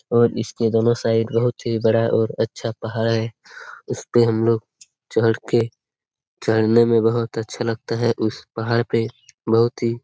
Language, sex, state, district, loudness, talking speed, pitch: Hindi, male, Bihar, Lakhisarai, -21 LUFS, 160 wpm, 115 Hz